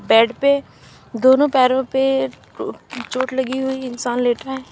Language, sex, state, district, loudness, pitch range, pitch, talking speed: Hindi, female, Uttar Pradesh, Lalitpur, -18 LUFS, 240-265 Hz, 255 Hz, 150 wpm